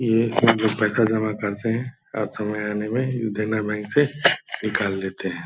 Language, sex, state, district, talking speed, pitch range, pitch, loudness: Hindi, male, Bihar, Purnia, 175 wpm, 105-115 Hz, 110 Hz, -23 LUFS